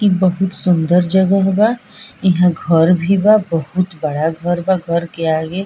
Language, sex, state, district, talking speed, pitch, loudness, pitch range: Bhojpuri, female, Bihar, East Champaran, 180 wpm, 180 Hz, -14 LUFS, 170-190 Hz